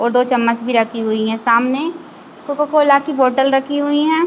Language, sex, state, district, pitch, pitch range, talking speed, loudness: Hindi, female, Chhattisgarh, Bilaspur, 270 Hz, 235-295 Hz, 210 wpm, -16 LUFS